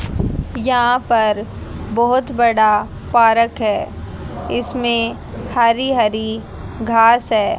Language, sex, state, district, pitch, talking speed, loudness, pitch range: Hindi, female, Haryana, Jhajjar, 235 Hz, 85 wpm, -16 LUFS, 225-245 Hz